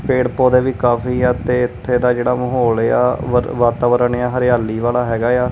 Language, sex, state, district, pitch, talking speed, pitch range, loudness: Punjabi, male, Punjab, Kapurthala, 125 Hz, 195 wpm, 120-125 Hz, -16 LUFS